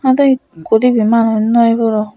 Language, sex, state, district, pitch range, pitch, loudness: Chakma, female, Tripura, West Tripura, 220-250 Hz, 230 Hz, -13 LUFS